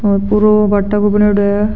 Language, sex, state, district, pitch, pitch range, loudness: Marwari, female, Rajasthan, Nagaur, 205 Hz, 205-210 Hz, -12 LUFS